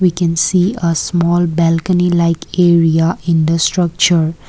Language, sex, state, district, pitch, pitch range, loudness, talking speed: English, female, Assam, Kamrup Metropolitan, 170 Hz, 165-175 Hz, -13 LUFS, 145 wpm